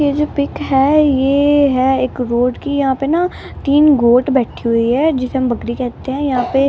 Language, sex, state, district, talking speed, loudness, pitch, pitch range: Hindi, female, Bihar, West Champaran, 225 wpm, -15 LUFS, 265 Hz, 250-285 Hz